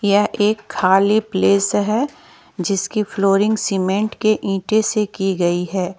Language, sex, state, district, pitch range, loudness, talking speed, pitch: Hindi, female, Jharkhand, Ranchi, 190-215 Hz, -18 LUFS, 140 wpm, 200 Hz